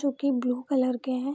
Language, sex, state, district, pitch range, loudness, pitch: Hindi, female, Bihar, Vaishali, 250-275 Hz, -27 LUFS, 260 Hz